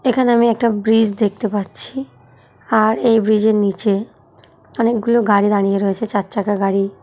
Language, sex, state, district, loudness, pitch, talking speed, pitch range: Bengali, female, West Bengal, North 24 Parganas, -16 LUFS, 215 Hz, 145 wpm, 205-230 Hz